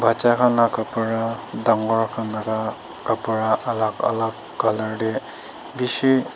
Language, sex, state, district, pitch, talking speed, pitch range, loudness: Nagamese, female, Nagaland, Dimapur, 115 Hz, 125 wpm, 110-115 Hz, -22 LUFS